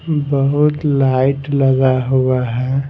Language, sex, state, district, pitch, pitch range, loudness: Hindi, male, Bihar, Patna, 135 Hz, 130-140 Hz, -15 LUFS